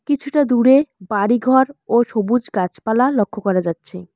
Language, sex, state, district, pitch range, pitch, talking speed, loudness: Bengali, female, West Bengal, Alipurduar, 200-260 Hz, 235 Hz, 130 wpm, -17 LUFS